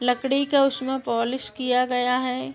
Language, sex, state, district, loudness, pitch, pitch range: Hindi, female, Uttar Pradesh, Deoria, -23 LUFS, 255 Hz, 245-265 Hz